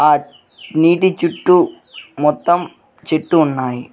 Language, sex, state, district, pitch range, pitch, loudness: Telugu, male, Telangana, Mahabubabad, 145-180 Hz, 160 Hz, -16 LUFS